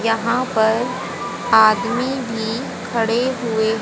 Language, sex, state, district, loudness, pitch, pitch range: Hindi, female, Haryana, Rohtak, -19 LUFS, 230 Hz, 220-245 Hz